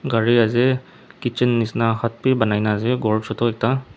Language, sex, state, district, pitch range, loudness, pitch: Nagamese, male, Nagaland, Dimapur, 115-125 Hz, -20 LUFS, 115 Hz